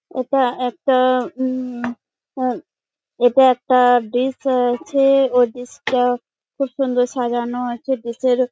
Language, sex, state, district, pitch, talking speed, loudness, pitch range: Bengali, female, West Bengal, Jalpaiguri, 250 Hz, 120 wpm, -18 LUFS, 245-260 Hz